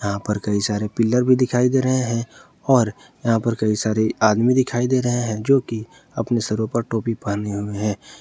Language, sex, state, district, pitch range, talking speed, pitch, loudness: Hindi, male, Jharkhand, Ranchi, 105-125 Hz, 200 wpm, 115 Hz, -20 LUFS